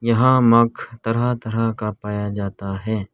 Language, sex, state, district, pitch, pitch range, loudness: Hindi, male, Arunachal Pradesh, Lower Dibang Valley, 110 Hz, 105-115 Hz, -20 LUFS